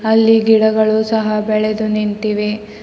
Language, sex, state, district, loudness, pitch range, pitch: Kannada, female, Karnataka, Bidar, -15 LUFS, 215-220 Hz, 215 Hz